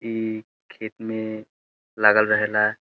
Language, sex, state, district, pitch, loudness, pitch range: Bhojpuri, male, Uttar Pradesh, Deoria, 110 Hz, -22 LUFS, 105-110 Hz